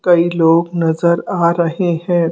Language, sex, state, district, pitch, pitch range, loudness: Hindi, female, Rajasthan, Jaipur, 170 Hz, 165-175 Hz, -15 LUFS